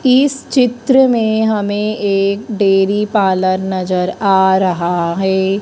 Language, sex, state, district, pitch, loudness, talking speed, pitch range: Hindi, male, Madhya Pradesh, Dhar, 200 Hz, -14 LUFS, 115 wpm, 190-220 Hz